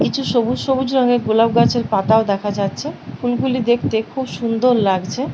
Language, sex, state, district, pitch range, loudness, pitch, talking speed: Bengali, female, West Bengal, Paschim Medinipur, 220-250 Hz, -17 LUFS, 235 Hz, 170 wpm